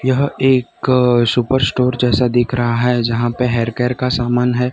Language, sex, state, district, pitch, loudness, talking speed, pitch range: Hindi, male, Gujarat, Valsad, 125 Hz, -16 LUFS, 175 wpm, 120-125 Hz